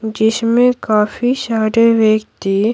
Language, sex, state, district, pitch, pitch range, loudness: Hindi, female, Bihar, Patna, 220 Hz, 215-230 Hz, -14 LUFS